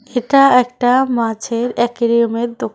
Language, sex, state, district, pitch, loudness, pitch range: Bengali, female, West Bengal, Cooch Behar, 240 Hz, -15 LUFS, 235-250 Hz